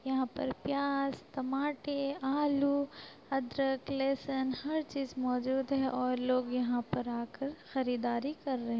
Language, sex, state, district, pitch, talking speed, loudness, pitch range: Hindi, female, Bihar, Sitamarhi, 270 Hz, 135 wpm, -34 LUFS, 255-280 Hz